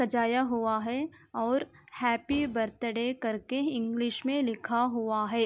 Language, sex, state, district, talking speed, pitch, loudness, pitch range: Hindi, female, Uttar Pradesh, Jalaun, 140 wpm, 235 Hz, -30 LUFS, 225-260 Hz